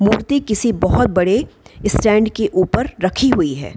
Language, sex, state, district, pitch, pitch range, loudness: Hindi, female, Bihar, Gaya, 215 Hz, 185-235 Hz, -16 LUFS